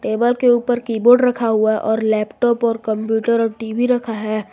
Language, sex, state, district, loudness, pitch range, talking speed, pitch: Hindi, female, Jharkhand, Garhwa, -17 LUFS, 220-240 Hz, 210 wpm, 225 Hz